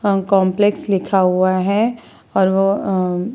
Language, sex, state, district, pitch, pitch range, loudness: Hindi, female, Bihar, Vaishali, 195 Hz, 185-200 Hz, -17 LUFS